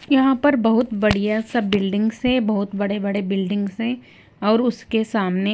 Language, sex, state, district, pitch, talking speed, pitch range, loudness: Hindi, female, Himachal Pradesh, Shimla, 215 Hz, 160 wpm, 200-235 Hz, -20 LUFS